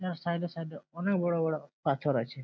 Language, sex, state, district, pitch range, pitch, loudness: Bengali, male, West Bengal, Jalpaiguri, 145-175 Hz, 165 Hz, -32 LUFS